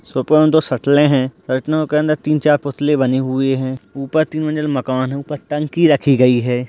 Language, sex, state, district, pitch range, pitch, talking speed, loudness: Hindi, male, Bihar, Purnia, 130-155 Hz, 140 Hz, 195 wpm, -16 LUFS